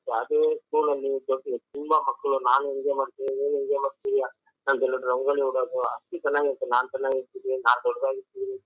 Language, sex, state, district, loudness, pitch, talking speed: Kannada, male, Karnataka, Chamarajanagar, -26 LUFS, 145 Hz, 90 wpm